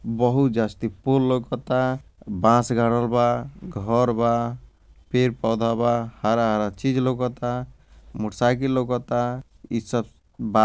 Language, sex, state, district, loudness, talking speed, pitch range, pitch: Bhojpuri, male, Bihar, Gopalganj, -23 LUFS, 105 wpm, 115-125 Hz, 120 Hz